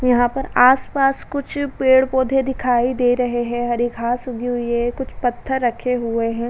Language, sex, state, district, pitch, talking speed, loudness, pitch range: Hindi, female, Uttar Pradesh, Budaun, 245 Hz, 185 wpm, -19 LUFS, 240-265 Hz